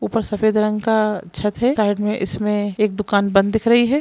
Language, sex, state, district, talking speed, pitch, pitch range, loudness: Hindi, female, Bihar, Jamui, 225 wpm, 210 Hz, 205-220 Hz, -19 LUFS